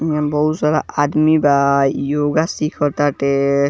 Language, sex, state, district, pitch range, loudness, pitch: Bhojpuri, male, Bihar, East Champaran, 140-155 Hz, -16 LUFS, 145 Hz